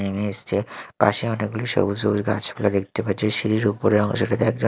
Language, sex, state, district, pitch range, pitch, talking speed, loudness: Bengali, male, Odisha, Malkangiri, 100-110 Hz, 105 Hz, 165 wpm, -22 LUFS